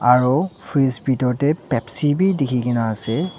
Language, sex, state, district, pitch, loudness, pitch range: Nagamese, male, Nagaland, Dimapur, 130 Hz, -19 LUFS, 120-150 Hz